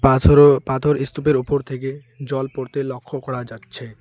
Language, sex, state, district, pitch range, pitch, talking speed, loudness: Bengali, male, West Bengal, Alipurduar, 130-140 Hz, 135 Hz, 165 wpm, -19 LUFS